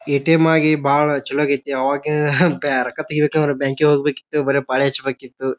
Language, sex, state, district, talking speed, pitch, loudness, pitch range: Kannada, male, Karnataka, Bijapur, 160 wpm, 145 Hz, -18 LUFS, 135-150 Hz